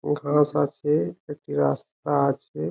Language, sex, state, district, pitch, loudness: Bengali, male, West Bengal, Jhargram, 145 Hz, -24 LUFS